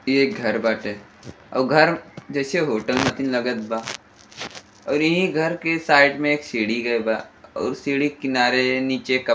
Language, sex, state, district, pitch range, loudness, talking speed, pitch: Bhojpuri, male, Uttar Pradesh, Deoria, 115-145 Hz, -21 LUFS, 175 wpm, 130 Hz